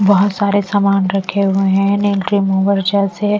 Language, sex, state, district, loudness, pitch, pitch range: Hindi, female, Bihar, Patna, -15 LUFS, 200 Hz, 195-205 Hz